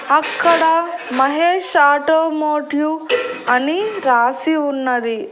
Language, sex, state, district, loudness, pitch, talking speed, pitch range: Telugu, female, Andhra Pradesh, Annamaya, -16 LUFS, 305 Hz, 70 wpm, 270-340 Hz